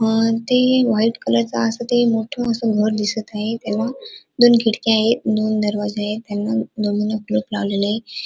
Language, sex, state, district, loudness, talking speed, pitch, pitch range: Marathi, female, Maharashtra, Dhule, -19 LUFS, 175 wpm, 220 Hz, 210-230 Hz